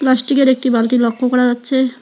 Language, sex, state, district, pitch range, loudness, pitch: Bengali, female, West Bengal, Alipurduar, 245-260 Hz, -14 LUFS, 250 Hz